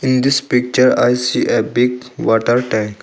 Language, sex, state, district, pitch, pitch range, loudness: English, male, Arunachal Pradesh, Longding, 125 Hz, 120-130 Hz, -15 LUFS